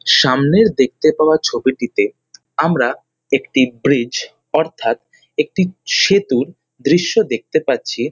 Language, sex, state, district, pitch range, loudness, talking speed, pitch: Bengali, male, West Bengal, North 24 Parganas, 130-195 Hz, -16 LUFS, 95 wpm, 155 Hz